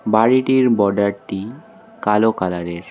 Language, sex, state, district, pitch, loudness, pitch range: Bengali, male, West Bengal, Alipurduar, 105 Hz, -18 LUFS, 100-130 Hz